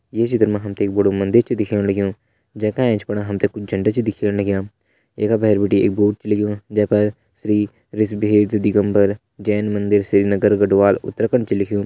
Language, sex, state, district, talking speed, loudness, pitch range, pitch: Hindi, male, Uttarakhand, Uttarkashi, 215 wpm, -18 LUFS, 100-105 Hz, 105 Hz